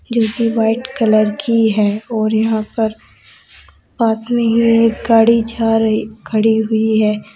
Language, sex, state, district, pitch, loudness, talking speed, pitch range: Hindi, female, Uttar Pradesh, Saharanpur, 225 Hz, -15 LUFS, 155 wpm, 220-230 Hz